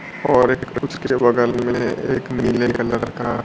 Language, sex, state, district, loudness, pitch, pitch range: Hindi, male, Bihar, Kaimur, -19 LUFS, 120 Hz, 120-130 Hz